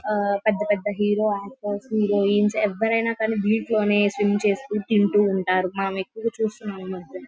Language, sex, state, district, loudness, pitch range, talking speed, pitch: Telugu, female, Andhra Pradesh, Guntur, -23 LUFS, 200-215 Hz, 150 wpm, 205 Hz